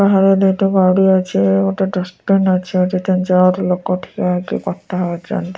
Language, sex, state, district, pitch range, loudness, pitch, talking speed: Odia, female, Odisha, Nuapada, 180-195 Hz, -15 LUFS, 185 Hz, 160 wpm